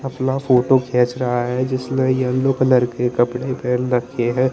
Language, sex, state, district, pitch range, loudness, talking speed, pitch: Hindi, male, Chandigarh, Chandigarh, 125-130 Hz, -18 LUFS, 185 wpm, 125 Hz